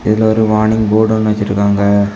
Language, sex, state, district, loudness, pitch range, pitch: Tamil, male, Tamil Nadu, Kanyakumari, -13 LUFS, 100-110 Hz, 110 Hz